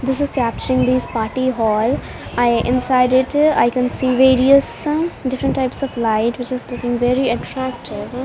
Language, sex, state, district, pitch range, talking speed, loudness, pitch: English, female, Haryana, Rohtak, 240-265 Hz, 165 wpm, -17 LUFS, 255 Hz